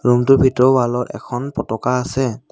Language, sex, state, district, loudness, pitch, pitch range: Assamese, male, Assam, Kamrup Metropolitan, -17 LUFS, 125 Hz, 120-130 Hz